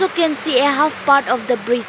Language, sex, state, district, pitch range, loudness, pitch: English, female, Arunachal Pradesh, Lower Dibang Valley, 250-310 Hz, -16 LUFS, 280 Hz